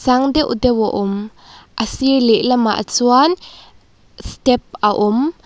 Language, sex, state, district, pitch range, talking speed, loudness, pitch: Mizo, female, Mizoram, Aizawl, 220-265 Hz, 130 wpm, -16 LUFS, 245 Hz